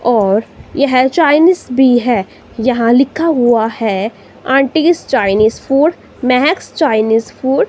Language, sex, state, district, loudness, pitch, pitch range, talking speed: Hindi, female, Himachal Pradesh, Shimla, -12 LUFS, 255 Hz, 225-300 Hz, 125 wpm